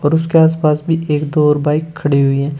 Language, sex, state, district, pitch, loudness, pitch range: Hindi, male, Uttar Pradesh, Shamli, 150 Hz, -14 LUFS, 145-160 Hz